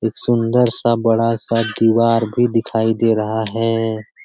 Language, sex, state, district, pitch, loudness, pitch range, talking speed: Hindi, male, Bihar, Jamui, 115 Hz, -16 LUFS, 110-115 Hz, 140 wpm